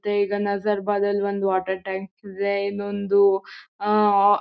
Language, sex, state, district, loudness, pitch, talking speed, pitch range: Kannada, female, Karnataka, Mysore, -23 LUFS, 200 Hz, 135 wpm, 195-205 Hz